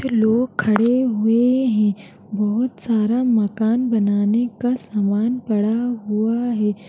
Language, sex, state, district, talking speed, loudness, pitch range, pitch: Hindi, female, Uttar Pradesh, Jalaun, 120 wpm, -19 LUFS, 210-245 Hz, 225 Hz